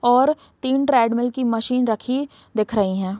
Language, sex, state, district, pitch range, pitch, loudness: Hindi, female, Bihar, East Champaran, 220-260 Hz, 245 Hz, -21 LUFS